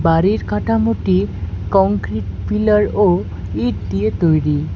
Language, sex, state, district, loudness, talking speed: Bengali, female, West Bengal, Alipurduar, -17 LUFS, 100 wpm